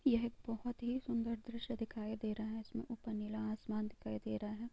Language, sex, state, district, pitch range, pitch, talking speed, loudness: Hindi, female, Bihar, Gopalganj, 215-235 Hz, 225 Hz, 230 wpm, -42 LUFS